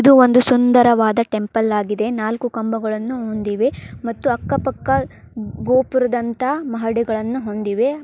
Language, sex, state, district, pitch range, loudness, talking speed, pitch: Kannada, male, Karnataka, Dharwad, 220-250 Hz, -18 LUFS, 105 wpm, 230 Hz